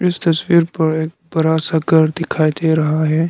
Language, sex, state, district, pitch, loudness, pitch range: Hindi, male, Arunachal Pradesh, Lower Dibang Valley, 160 Hz, -16 LUFS, 155-165 Hz